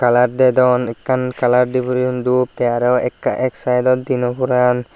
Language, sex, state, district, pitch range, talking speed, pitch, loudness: Chakma, male, Tripura, Dhalai, 125-130 Hz, 170 wpm, 125 Hz, -16 LUFS